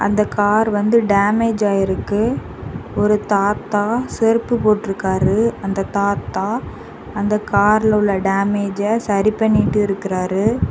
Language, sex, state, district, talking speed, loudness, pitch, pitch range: Tamil, female, Tamil Nadu, Kanyakumari, 100 wpm, -17 LUFS, 205 Hz, 200-215 Hz